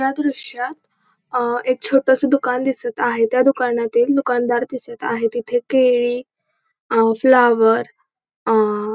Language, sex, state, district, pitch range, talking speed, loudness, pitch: Marathi, female, Maharashtra, Pune, 235-265 Hz, 125 wpm, -18 LUFS, 245 Hz